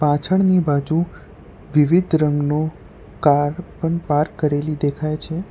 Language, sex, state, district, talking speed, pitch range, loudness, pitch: Gujarati, male, Gujarat, Valsad, 110 wpm, 145-165 Hz, -19 LUFS, 150 Hz